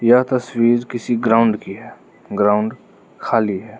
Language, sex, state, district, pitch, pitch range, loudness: Hindi, male, Arunachal Pradesh, Lower Dibang Valley, 115 Hz, 110-120 Hz, -18 LUFS